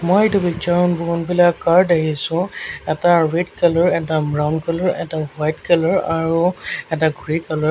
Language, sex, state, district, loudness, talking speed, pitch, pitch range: Assamese, male, Assam, Sonitpur, -18 LUFS, 165 wpm, 170 Hz, 155-175 Hz